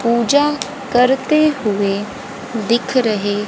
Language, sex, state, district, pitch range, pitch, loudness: Hindi, female, Haryana, Rohtak, 215-270 Hz, 245 Hz, -16 LUFS